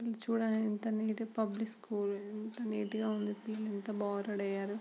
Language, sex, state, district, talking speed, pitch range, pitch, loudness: Telugu, female, Andhra Pradesh, Srikakulam, 125 wpm, 205-220 Hz, 215 Hz, -37 LUFS